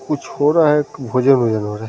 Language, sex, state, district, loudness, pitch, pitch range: Hindi, male, Bihar, Saran, -16 LUFS, 135 Hz, 115-150 Hz